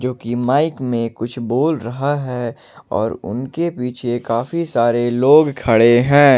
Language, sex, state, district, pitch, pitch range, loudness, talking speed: Hindi, male, Jharkhand, Ranchi, 125 Hz, 120-145 Hz, -17 LUFS, 150 wpm